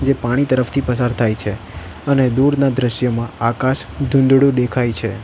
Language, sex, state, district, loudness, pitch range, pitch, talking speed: Gujarati, male, Gujarat, Valsad, -17 LUFS, 115-135 Hz, 125 Hz, 150 wpm